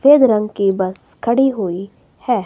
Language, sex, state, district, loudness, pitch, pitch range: Hindi, female, Himachal Pradesh, Shimla, -16 LUFS, 215 Hz, 195-255 Hz